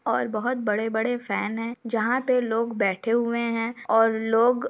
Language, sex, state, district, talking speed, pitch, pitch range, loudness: Hindi, female, Bihar, Samastipur, 180 wpm, 230 Hz, 220-240 Hz, -24 LUFS